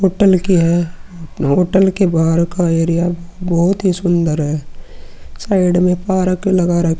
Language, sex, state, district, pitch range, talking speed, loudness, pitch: Hindi, male, Uttar Pradesh, Muzaffarnagar, 170-185 Hz, 145 wpm, -15 LUFS, 175 Hz